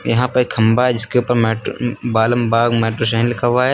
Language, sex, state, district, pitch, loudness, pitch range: Hindi, male, Uttar Pradesh, Lucknow, 120 Hz, -16 LUFS, 115-125 Hz